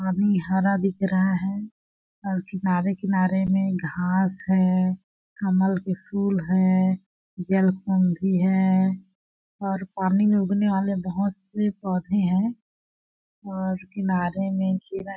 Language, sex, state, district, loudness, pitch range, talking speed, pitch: Hindi, female, Chhattisgarh, Balrampur, -24 LUFS, 185-195 Hz, 120 wpm, 190 Hz